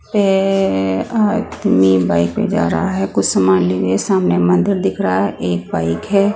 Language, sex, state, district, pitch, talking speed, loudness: Hindi, female, Maharashtra, Gondia, 95 Hz, 170 wpm, -15 LUFS